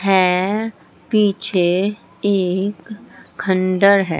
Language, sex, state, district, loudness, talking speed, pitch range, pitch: Hindi, female, Bihar, Katihar, -17 LUFS, 70 wpm, 185-210 Hz, 195 Hz